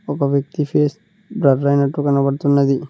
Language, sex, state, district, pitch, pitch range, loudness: Telugu, male, Telangana, Mahabubabad, 140 Hz, 140-150 Hz, -17 LUFS